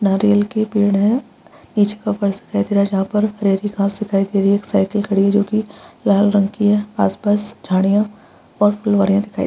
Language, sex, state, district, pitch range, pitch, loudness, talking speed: Hindi, female, Bihar, Araria, 200-210 Hz, 205 Hz, -17 LUFS, 235 wpm